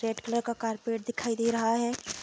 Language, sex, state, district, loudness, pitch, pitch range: Hindi, female, Bihar, Bhagalpur, -30 LUFS, 230 Hz, 225-235 Hz